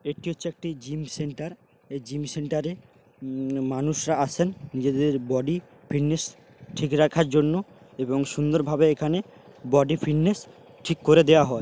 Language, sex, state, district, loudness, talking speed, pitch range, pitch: Bengali, male, West Bengal, Paschim Medinipur, -25 LUFS, 135 wpm, 140-160 Hz, 150 Hz